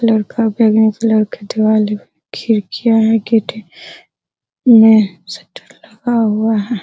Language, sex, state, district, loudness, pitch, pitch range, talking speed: Hindi, female, Bihar, Araria, -13 LUFS, 220 Hz, 215-230 Hz, 60 wpm